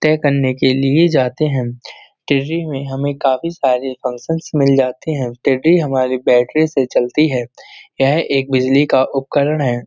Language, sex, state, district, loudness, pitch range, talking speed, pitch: Hindi, male, Uttar Pradesh, Muzaffarnagar, -16 LUFS, 130-155 Hz, 165 wpm, 135 Hz